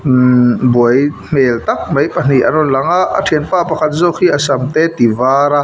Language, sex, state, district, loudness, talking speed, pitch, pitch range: Mizo, male, Mizoram, Aizawl, -12 LUFS, 225 wpm, 145 Hz, 130-160 Hz